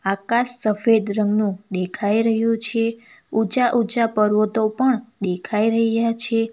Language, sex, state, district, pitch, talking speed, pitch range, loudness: Gujarati, female, Gujarat, Valsad, 225 Hz, 120 wpm, 210-230 Hz, -19 LUFS